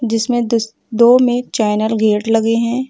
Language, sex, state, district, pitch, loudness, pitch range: Hindi, female, Uttar Pradesh, Lucknow, 230 Hz, -15 LUFS, 225-245 Hz